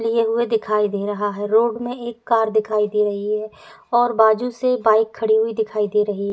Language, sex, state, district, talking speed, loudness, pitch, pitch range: Hindi, female, Uttar Pradesh, Etah, 230 wpm, -19 LUFS, 220 Hz, 210-230 Hz